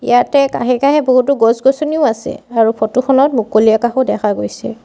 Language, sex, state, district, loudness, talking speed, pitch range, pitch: Assamese, female, Assam, Sonitpur, -13 LUFS, 160 wpm, 225-270 Hz, 250 Hz